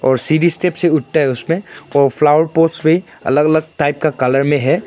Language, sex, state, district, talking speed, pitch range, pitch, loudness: Hindi, male, Arunachal Pradesh, Longding, 210 wpm, 140-165 Hz, 155 Hz, -15 LUFS